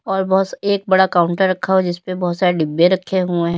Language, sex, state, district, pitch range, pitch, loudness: Hindi, female, Uttar Pradesh, Lalitpur, 175-190 Hz, 185 Hz, -17 LUFS